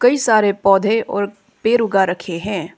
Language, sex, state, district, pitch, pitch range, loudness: Hindi, female, Arunachal Pradesh, Papum Pare, 205 Hz, 195-225 Hz, -17 LUFS